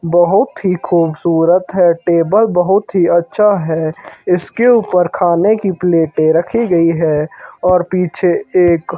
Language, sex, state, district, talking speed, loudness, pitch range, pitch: Hindi, male, Himachal Pradesh, Shimla, 135 wpm, -13 LUFS, 165-185 Hz, 175 Hz